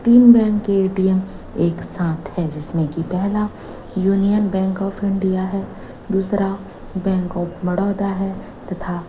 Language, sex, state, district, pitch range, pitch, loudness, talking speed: Hindi, female, Chhattisgarh, Raipur, 180-200 Hz, 195 Hz, -19 LUFS, 120 wpm